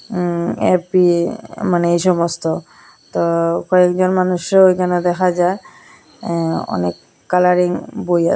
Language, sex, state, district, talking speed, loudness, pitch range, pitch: Bengali, female, Assam, Hailakandi, 110 wpm, -16 LUFS, 170-185 Hz, 180 Hz